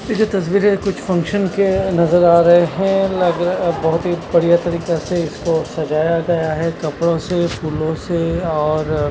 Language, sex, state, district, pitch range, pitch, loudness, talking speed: Hindi, male, Punjab, Kapurthala, 160-185 Hz, 170 Hz, -17 LUFS, 170 wpm